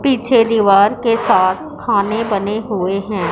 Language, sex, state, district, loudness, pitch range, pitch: Hindi, female, Punjab, Pathankot, -15 LUFS, 195-230 Hz, 210 Hz